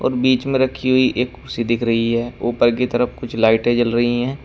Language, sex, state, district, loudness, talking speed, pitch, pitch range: Hindi, male, Uttar Pradesh, Shamli, -18 LUFS, 245 wpm, 120 Hz, 120-130 Hz